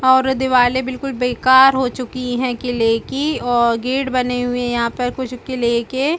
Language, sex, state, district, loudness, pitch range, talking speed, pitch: Hindi, female, Chhattisgarh, Balrampur, -17 LUFS, 245-260 Hz, 195 wpm, 255 Hz